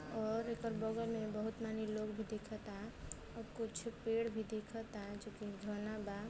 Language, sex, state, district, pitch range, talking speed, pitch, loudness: Bhojpuri, female, Uttar Pradesh, Varanasi, 215-225 Hz, 170 wpm, 220 Hz, -43 LUFS